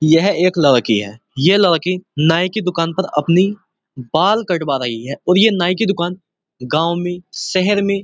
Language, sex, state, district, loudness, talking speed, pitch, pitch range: Hindi, male, Uttar Pradesh, Muzaffarnagar, -16 LUFS, 185 wpm, 175 Hz, 155-190 Hz